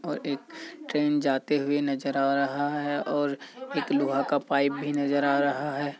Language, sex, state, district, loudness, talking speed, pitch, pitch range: Hindi, male, Bihar, Kishanganj, -27 LUFS, 200 wpm, 145 Hz, 140-145 Hz